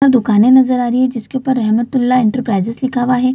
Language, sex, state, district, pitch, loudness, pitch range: Hindi, female, Bihar, Samastipur, 250 Hz, -14 LUFS, 235-255 Hz